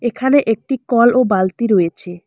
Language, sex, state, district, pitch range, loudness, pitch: Bengali, female, West Bengal, Alipurduar, 190-255 Hz, -15 LUFS, 235 Hz